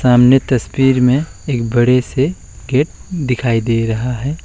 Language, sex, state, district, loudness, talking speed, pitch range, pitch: Hindi, male, West Bengal, Alipurduar, -15 LUFS, 150 wpm, 120-135 Hz, 125 Hz